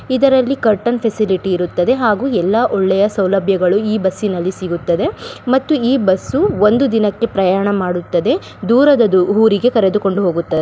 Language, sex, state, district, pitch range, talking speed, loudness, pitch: Kannada, female, Karnataka, Bellary, 190-235 Hz, 125 wpm, -15 LUFS, 205 Hz